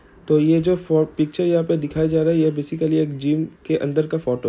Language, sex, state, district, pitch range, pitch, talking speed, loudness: Hindi, male, Bihar, Saran, 155-165 Hz, 160 Hz, 255 wpm, -20 LUFS